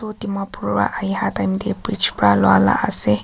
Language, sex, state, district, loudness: Nagamese, female, Nagaland, Kohima, -18 LUFS